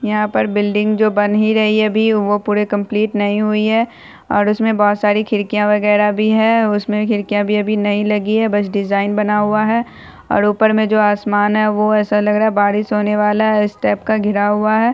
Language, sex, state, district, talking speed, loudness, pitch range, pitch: Hindi, female, Bihar, Saharsa, 225 wpm, -15 LUFS, 205-215 Hz, 210 Hz